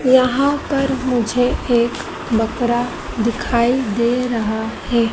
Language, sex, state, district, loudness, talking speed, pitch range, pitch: Hindi, female, Madhya Pradesh, Dhar, -18 LUFS, 105 wpm, 235-255 Hz, 240 Hz